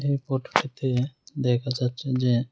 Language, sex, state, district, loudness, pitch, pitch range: Bengali, male, Tripura, West Tripura, -26 LUFS, 130 Hz, 125-135 Hz